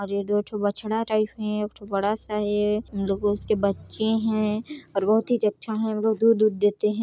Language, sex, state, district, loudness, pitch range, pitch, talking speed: Hindi, female, Chhattisgarh, Sarguja, -24 LUFS, 205-220 Hz, 210 Hz, 230 wpm